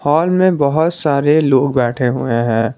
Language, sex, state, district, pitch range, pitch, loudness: Hindi, male, Jharkhand, Garhwa, 125-155 Hz, 140 Hz, -14 LUFS